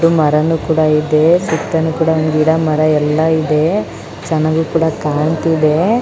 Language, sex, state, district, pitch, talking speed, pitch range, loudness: Kannada, female, Karnataka, Shimoga, 160 Hz, 120 wpm, 155-160 Hz, -14 LUFS